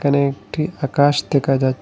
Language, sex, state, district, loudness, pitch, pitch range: Bengali, male, Assam, Hailakandi, -18 LUFS, 140 Hz, 135-145 Hz